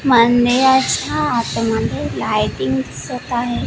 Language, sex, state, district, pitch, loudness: Marathi, female, Maharashtra, Gondia, 185 Hz, -17 LUFS